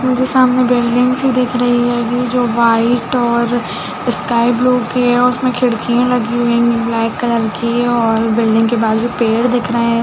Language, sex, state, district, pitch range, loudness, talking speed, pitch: Hindi, female, Chhattisgarh, Bilaspur, 235-250 Hz, -14 LUFS, 185 wpm, 240 Hz